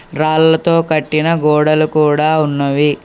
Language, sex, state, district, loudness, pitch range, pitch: Telugu, male, Telangana, Hyderabad, -13 LUFS, 150-160 Hz, 155 Hz